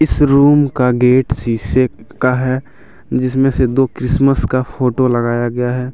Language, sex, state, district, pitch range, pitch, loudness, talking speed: Hindi, male, Jharkhand, Deoghar, 120-135 Hz, 125 Hz, -14 LUFS, 160 wpm